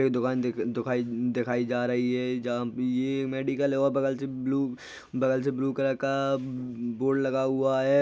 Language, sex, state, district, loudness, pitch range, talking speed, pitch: Hindi, male, Bihar, Jahanabad, -28 LUFS, 125-135 Hz, 210 wpm, 130 Hz